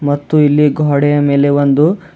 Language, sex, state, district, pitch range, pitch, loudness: Kannada, male, Karnataka, Bidar, 145-150 Hz, 145 Hz, -12 LUFS